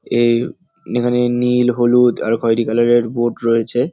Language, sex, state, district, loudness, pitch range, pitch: Bengali, male, West Bengal, North 24 Parganas, -16 LUFS, 115-125 Hz, 120 Hz